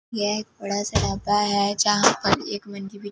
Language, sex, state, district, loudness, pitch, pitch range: Hindi, female, Punjab, Fazilka, -22 LUFS, 205 Hz, 200-205 Hz